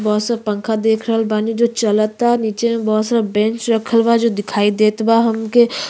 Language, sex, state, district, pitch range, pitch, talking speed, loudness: Bhojpuri, female, Uttar Pradesh, Gorakhpur, 215-230 Hz, 225 Hz, 205 wpm, -16 LUFS